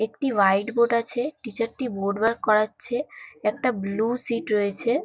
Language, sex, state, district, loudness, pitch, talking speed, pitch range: Bengali, female, West Bengal, Kolkata, -24 LUFS, 230 Hz, 155 wpm, 210-240 Hz